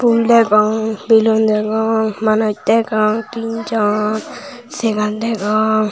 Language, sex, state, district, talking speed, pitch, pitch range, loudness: Chakma, male, Tripura, Unakoti, 90 wpm, 220 Hz, 215-225 Hz, -16 LUFS